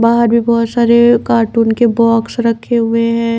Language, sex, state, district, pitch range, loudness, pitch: Hindi, female, Bihar, Katihar, 230-235 Hz, -12 LUFS, 230 Hz